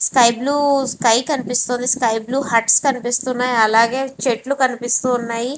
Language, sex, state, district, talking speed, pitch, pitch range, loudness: Telugu, female, Andhra Pradesh, Visakhapatnam, 150 wpm, 250 Hz, 235-265 Hz, -17 LUFS